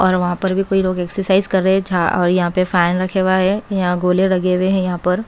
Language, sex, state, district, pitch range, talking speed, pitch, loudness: Hindi, female, Haryana, Charkhi Dadri, 180-190 Hz, 285 wpm, 185 Hz, -16 LUFS